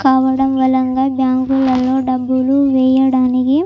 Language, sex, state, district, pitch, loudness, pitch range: Telugu, female, Andhra Pradesh, Chittoor, 260 Hz, -14 LUFS, 260-265 Hz